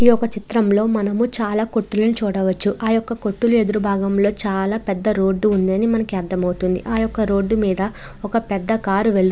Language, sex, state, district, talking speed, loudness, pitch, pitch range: Telugu, female, Andhra Pradesh, Chittoor, 175 wpm, -19 LUFS, 210 Hz, 195-225 Hz